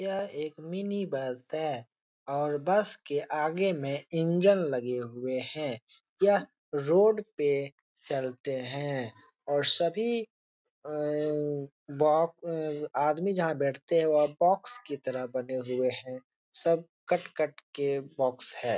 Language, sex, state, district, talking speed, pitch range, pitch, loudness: Hindi, male, Bihar, Jahanabad, 130 wpm, 140-170 Hz, 150 Hz, -30 LUFS